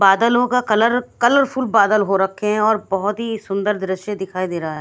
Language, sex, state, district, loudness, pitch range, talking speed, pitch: Hindi, female, Haryana, Charkhi Dadri, -18 LUFS, 195-230 Hz, 200 wpm, 210 Hz